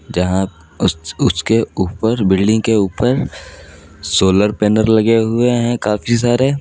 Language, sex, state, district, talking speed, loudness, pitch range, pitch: Hindi, male, Uttar Pradesh, Lalitpur, 120 wpm, -15 LUFS, 95-115 Hz, 105 Hz